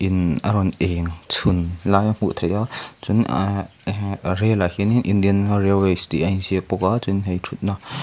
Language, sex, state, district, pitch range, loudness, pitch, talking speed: Mizo, male, Mizoram, Aizawl, 90-100 Hz, -21 LUFS, 95 Hz, 200 wpm